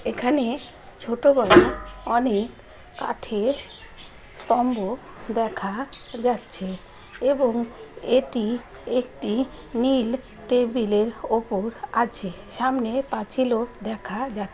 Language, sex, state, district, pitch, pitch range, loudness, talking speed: Bengali, female, West Bengal, North 24 Parganas, 235 Hz, 220-255 Hz, -24 LUFS, 80 wpm